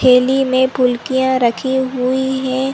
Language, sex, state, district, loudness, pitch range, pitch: Hindi, female, Chhattisgarh, Korba, -15 LUFS, 255-265 Hz, 260 Hz